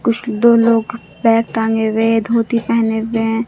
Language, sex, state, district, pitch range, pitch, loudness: Hindi, female, Bihar, Katihar, 225-230 Hz, 225 Hz, -15 LUFS